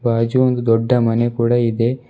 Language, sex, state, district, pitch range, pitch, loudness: Kannada, male, Karnataka, Bidar, 115-125 Hz, 120 Hz, -16 LUFS